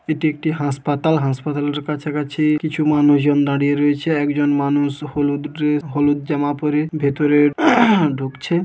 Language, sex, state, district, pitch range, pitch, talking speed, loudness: Bengali, male, West Bengal, Paschim Medinipur, 145-155 Hz, 145 Hz, 125 wpm, -18 LUFS